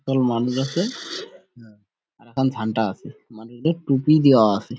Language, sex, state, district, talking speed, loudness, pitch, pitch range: Bengali, male, West Bengal, Purulia, 140 wpm, -21 LUFS, 130 Hz, 110-145 Hz